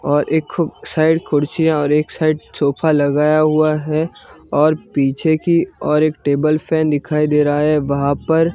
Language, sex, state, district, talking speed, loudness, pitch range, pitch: Hindi, male, Gujarat, Gandhinagar, 175 wpm, -16 LUFS, 145-160 Hz, 155 Hz